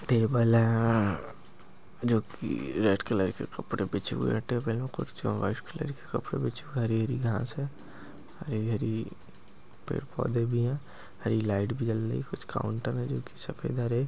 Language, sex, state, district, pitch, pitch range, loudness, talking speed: Hindi, male, Maharashtra, Chandrapur, 115 Hz, 110-125 Hz, -30 LUFS, 170 wpm